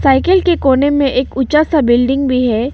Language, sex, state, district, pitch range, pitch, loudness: Hindi, female, Arunachal Pradesh, Papum Pare, 255-295 Hz, 270 Hz, -13 LUFS